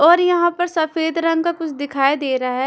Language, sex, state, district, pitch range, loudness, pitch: Hindi, female, Punjab, Kapurthala, 285-340 Hz, -18 LUFS, 320 Hz